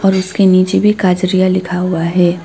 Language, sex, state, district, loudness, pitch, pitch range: Hindi, female, West Bengal, Alipurduar, -13 LUFS, 185 Hz, 180-190 Hz